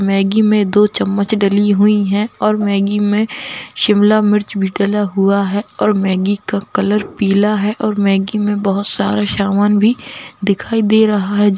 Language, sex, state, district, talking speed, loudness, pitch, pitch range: Hindi, female, Bihar, Darbhanga, 170 wpm, -14 LUFS, 205 Hz, 200-210 Hz